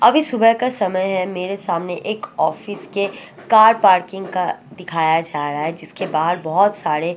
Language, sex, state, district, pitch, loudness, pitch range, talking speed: Hindi, female, Odisha, Sambalpur, 185 Hz, -18 LUFS, 165-205 Hz, 175 wpm